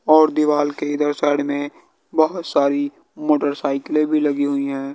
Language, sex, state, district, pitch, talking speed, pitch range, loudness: Hindi, male, Bihar, West Champaran, 145 Hz, 155 wpm, 145-150 Hz, -19 LUFS